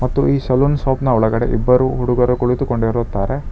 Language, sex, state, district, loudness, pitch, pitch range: Kannada, male, Karnataka, Bangalore, -16 LUFS, 125 Hz, 120-130 Hz